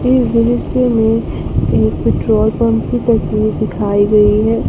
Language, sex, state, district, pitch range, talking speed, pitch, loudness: Hindi, female, Jharkhand, Palamu, 205-230 Hz, 140 wpm, 220 Hz, -14 LUFS